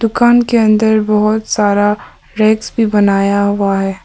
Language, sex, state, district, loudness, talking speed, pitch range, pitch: Hindi, female, Arunachal Pradesh, Papum Pare, -12 LUFS, 150 wpm, 200-220 Hz, 215 Hz